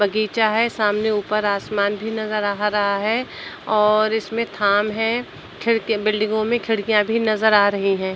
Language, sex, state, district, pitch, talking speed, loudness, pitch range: Hindi, female, Uttar Pradesh, Budaun, 215 Hz, 170 wpm, -20 LUFS, 205-220 Hz